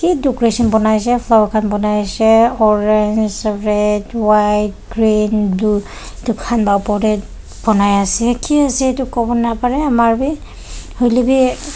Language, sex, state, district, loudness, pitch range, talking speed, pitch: Nagamese, female, Nagaland, Dimapur, -15 LUFS, 210-245 Hz, 130 wpm, 220 Hz